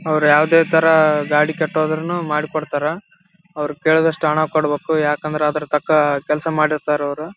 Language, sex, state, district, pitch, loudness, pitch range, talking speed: Kannada, male, Karnataka, Raichur, 155 Hz, -17 LUFS, 150-160 Hz, 140 wpm